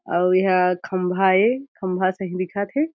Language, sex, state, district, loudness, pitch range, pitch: Chhattisgarhi, female, Chhattisgarh, Jashpur, -21 LUFS, 185-200 Hz, 185 Hz